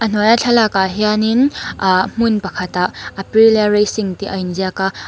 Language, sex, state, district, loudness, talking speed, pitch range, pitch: Mizo, female, Mizoram, Aizawl, -15 LUFS, 190 wpm, 190-220 Hz, 210 Hz